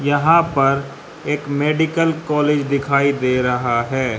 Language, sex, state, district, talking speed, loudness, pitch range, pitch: Hindi, male, Haryana, Rohtak, 130 wpm, -18 LUFS, 135-150 Hz, 140 Hz